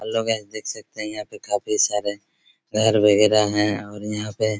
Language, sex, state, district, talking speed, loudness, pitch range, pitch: Hindi, male, Chhattisgarh, Raigarh, 180 wpm, -22 LUFS, 105-110 Hz, 105 Hz